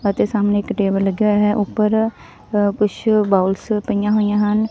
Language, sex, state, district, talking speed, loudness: Punjabi, female, Punjab, Fazilka, 180 wpm, -18 LUFS